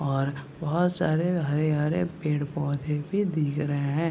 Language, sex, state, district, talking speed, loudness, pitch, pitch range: Hindi, male, Uttar Pradesh, Deoria, 145 wpm, -27 LUFS, 150 Hz, 145-165 Hz